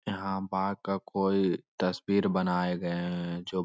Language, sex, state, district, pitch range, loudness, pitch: Hindi, male, Bihar, Lakhisarai, 90-95 Hz, -30 LUFS, 95 Hz